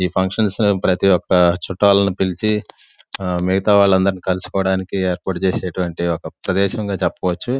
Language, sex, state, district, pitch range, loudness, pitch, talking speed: Telugu, male, Andhra Pradesh, Guntur, 90-100 Hz, -18 LUFS, 95 Hz, 120 wpm